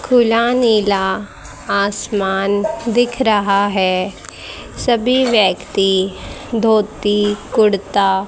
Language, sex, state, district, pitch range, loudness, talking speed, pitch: Hindi, female, Haryana, Charkhi Dadri, 195-230 Hz, -16 LUFS, 80 wpm, 205 Hz